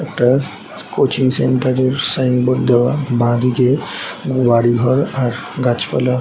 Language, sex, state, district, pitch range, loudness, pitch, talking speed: Bengali, male, West Bengal, Jhargram, 120-130 Hz, -16 LUFS, 125 Hz, 135 wpm